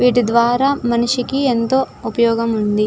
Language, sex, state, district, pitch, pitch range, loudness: Telugu, female, Andhra Pradesh, Chittoor, 240 Hz, 230-250 Hz, -16 LUFS